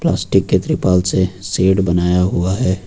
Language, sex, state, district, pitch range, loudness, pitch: Hindi, male, Uttar Pradesh, Lucknow, 90-95 Hz, -16 LUFS, 95 Hz